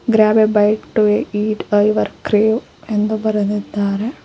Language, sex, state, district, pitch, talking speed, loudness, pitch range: Kannada, female, Karnataka, Koppal, 215 Hz, 115 wpm, -16 LUFS, 210-220 Hz